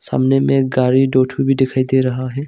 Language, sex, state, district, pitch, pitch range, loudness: Hindi, male, Arunachal Pradesh, Longding, 130 Hz, 130-135 Hz, -15 LUFS